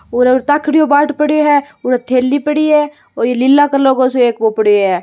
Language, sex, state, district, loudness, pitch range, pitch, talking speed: Hindi, female, Rajasthan, Churu, -12 LUFS, 250-295 Hz, 270 Hz, 225 wpm